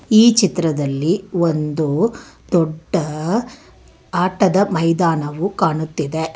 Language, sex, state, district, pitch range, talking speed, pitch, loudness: Kannada, female, Karnataka, Bangalore, 155-195 Hz, 65 wpm, 170 Hz, -18 LUFS